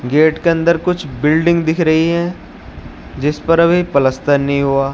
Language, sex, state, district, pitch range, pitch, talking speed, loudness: Hindi, male, Uttar Pradesh, Shamli, 140-170 Hz, 160 Hz, 170 wpm, -14 LUFS